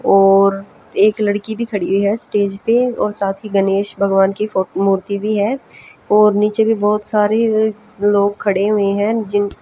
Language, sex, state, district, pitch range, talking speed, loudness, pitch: Hindi, female, Haryana, Jhajjar, 200-215 Hz, 180 wpm, -16 LUFS, 205 Hz